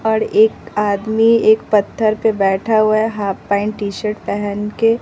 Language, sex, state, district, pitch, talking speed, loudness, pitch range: Hindi, female, Bihar, Katihar, 215 Hz, 180 wpm, -16 LUFS, 205-220 Hz